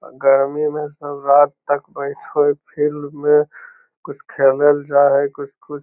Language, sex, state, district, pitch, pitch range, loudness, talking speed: Magahi, male, Bihar, Lakhisarai, 145 Hz, 140-150 Hz, -17 LUFS, 165 wpm